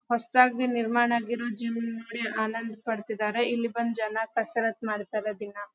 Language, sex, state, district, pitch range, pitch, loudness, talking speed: Kannada, female, Karnataka, Dharwad, 220-235 Hz, 230 Hz, -28 LUFS, 135 wpm